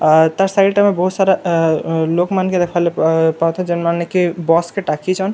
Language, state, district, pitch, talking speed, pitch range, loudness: Sambalpuri, Odisha, Sambalpur, 175 Hz, 225 wpm, 165-190 Hz, -15 LUFS